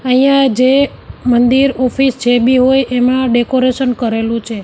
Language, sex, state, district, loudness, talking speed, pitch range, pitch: Gujarati, female, Gujarat, Gandhinagar, -12 LUFS, 140 wpm, 245-265 Hz, 255 Hz